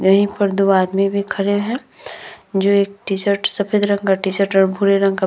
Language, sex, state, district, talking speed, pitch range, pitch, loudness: Hindi, female, Bihar, Vaishali, 205 wpm, 195-200 Hz, 200 Hz, -17 LUFS